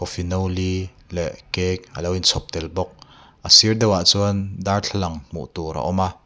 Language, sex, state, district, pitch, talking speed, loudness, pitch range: Mizo, male, Mizoram, Aizawl, 90 Hz, 180 wpm, -19 LUFS, 85-100 Hz